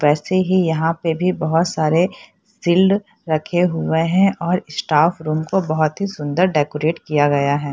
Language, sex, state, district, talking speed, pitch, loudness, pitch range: Hindi, female, Bihar, Purnia, 170 wpm, 165 Hz, -18 LUFS, 155-185 Hz